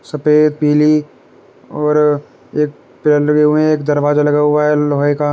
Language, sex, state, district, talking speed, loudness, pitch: Hindi, male, Uttar Pradesh, Muzaffarnagar, 125 wpm, -14 LUFS, 150 Hz